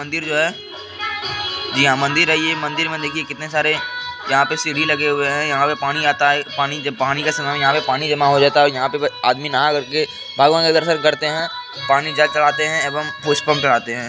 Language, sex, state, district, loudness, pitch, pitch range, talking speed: Hindi, male, Bihar, Supaul, -17 LUFS, 150 Hz, 140-155 Hz, 240 wpm